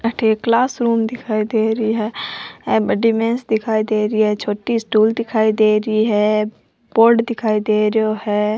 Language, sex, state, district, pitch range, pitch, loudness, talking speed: Rajasthani, female, Rajasthan, Churu, 215-230 Hz, 220 Hz, -17 LUFS, 175 wpm